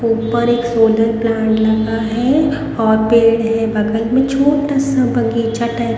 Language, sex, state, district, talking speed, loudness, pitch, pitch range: Hindi, female, Haryana, Rohtak, 160 wpm, -15 LUFS, 230 Hz, 225-245 Hz